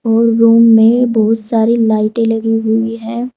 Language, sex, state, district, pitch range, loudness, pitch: Hindi, female, Uttar Pradesh, Saharanpur, 225-230 Hz, -12 LUFS, 225 Hz